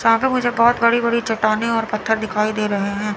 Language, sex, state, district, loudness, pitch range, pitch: Hindi, female, Chandigarh, Chandigarh, -18 LUFS, 215-235 Hz, 225 Hz